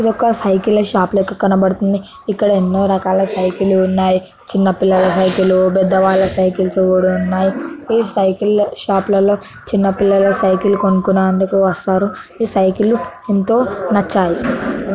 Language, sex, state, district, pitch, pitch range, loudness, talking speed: Telugu, female, Telangana, Nalgonda, 195 Hz, 190-205 Hz, -15 LUFS, 165 wpm